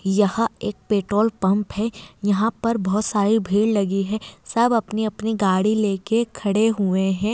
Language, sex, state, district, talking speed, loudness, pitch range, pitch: Hindi, female, Bihar, Kishanganj, 155 wpm, -21 LUFS, 200-220 Hz, 210 Hz